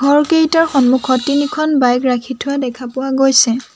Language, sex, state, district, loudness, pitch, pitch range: Assamese, female, Assam, Sonitpur, -14 LUFS, 270 Hz, 255-290 Hz